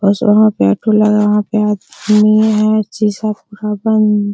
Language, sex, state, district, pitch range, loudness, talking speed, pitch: Hindi, female, Bihar, Araria, 210-215 Hz, -13 LUFS, 180 wpm, 210 Hz